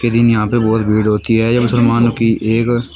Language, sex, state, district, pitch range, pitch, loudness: Hindi, male, Uttar Pradesh, Shamli, 110-120 Hz, 115 Hz, -14 LUFS